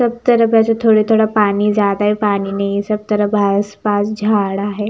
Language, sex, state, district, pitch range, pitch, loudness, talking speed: Hindi, female, Bihar, Katihar, 205-220 Hz, 210 Hz, -15 LUFS, 210 wpm